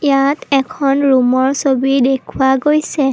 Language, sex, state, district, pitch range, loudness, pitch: Assamese, female, Assam, Kamrup Metropolitan, 265-280 Hz, -14 LUFS, 275 Hz